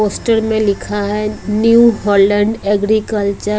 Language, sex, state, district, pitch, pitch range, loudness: Hindi, female, Odisha, Malkangiri, 210 Hz, 205-220 Hz, -14 LUFS